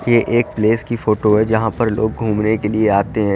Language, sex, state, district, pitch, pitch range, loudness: Hindi, male, Haryana, Charkhi Dadri, 110 Hz, 105-115 Hz, -16 LUFS